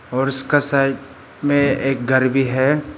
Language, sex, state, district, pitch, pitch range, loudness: Hindi, male, Arunachal Pradesh, Papum Pare, 135 Hz, 130-145 Hz, -17 LUFS